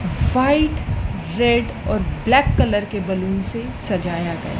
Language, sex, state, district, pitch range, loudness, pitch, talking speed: Hindi, female, Madhya Pradesh, Dhar, 190-240 Hz, -20 LUFS, 205 Hz, 130 wpm